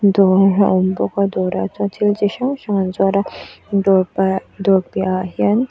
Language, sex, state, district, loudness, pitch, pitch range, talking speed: Mizo, female, Mizoram, Aizawl, -17 LUFS, 195 Hz, 185-205 Hz, 210 wpm